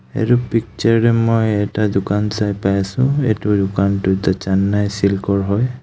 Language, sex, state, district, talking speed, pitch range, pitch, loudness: Assamese, male, Assam, Kamrup Metropolitan, 175 wpm, 100-115 Hz, 105 Hz, -17 LUFS